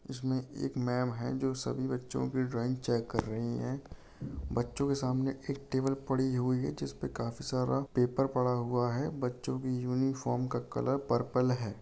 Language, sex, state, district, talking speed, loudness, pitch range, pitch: Hindi, male, Uttar Pradesh, Jalaun, 180 wpm, -33 LUFS, 120-130 Hz, 125 Hz